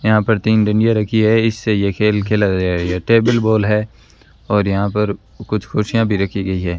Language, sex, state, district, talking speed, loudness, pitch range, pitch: Hindi, female, Rajasthan, Bikaner, 205 wpm, -16 LUFS, 100-110 Hz, 105 Hz